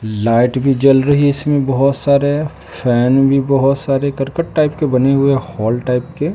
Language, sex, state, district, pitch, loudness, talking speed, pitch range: Hindi, male, Bihar, West Champaran, 135 Hz, -14 LUFS, 190 wpm, 130-145 Hz